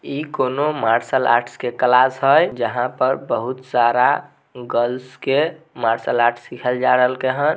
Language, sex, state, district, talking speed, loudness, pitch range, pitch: Maithili, male, Bihar, Samastipur, 160 wpm, -19 LUFS, 120-130 Hz, 125 Hz